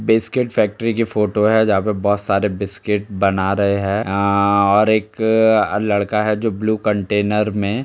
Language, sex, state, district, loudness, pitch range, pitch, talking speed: Hindi, male, Uttar Pradesh, Jalaun, -17 LUFS, 100-110 Hz, 105 Hz, 175 wpm